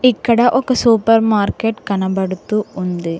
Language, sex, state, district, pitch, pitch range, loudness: Telugu, female, Telangana, Mahabubabad, 220 Hz, 190-235 Hz, -16 LUFS